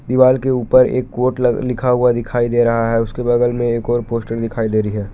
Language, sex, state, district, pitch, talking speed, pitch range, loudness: Hindi, male, Jharkhand, Palamu, 120 Hz, 255 wpm, 115-125 Hz, -16 LUFS